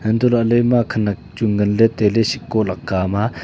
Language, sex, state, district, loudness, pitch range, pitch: Wancho, male, Arunachal Pradesh, Longding, -17 LUFS, 105-120 Hz, 110 Hz